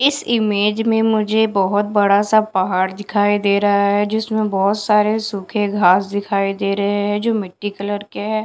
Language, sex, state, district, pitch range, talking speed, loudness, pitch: Hindi, female, Bihar, Katihar, 200-215 Hz, 185 wpm, -17 LUFS, 205 Hz